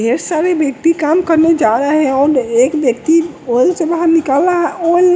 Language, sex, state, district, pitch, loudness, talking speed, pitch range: Hindi, male, Bihar, West Champaran, 320 Hz, -13 LUFS, 220 wpm, 275-335 Hz